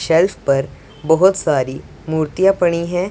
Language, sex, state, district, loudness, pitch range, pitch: Hindi, female, Punjab, Pathankot, -17 LUFS, 140-180 Hz, 160 Hz